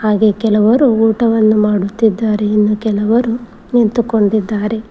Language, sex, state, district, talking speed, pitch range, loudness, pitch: Kannada, female, Karnataka, Koppal, 85 wpm, 210-230 Hz, -13 LUFS, 220 Hz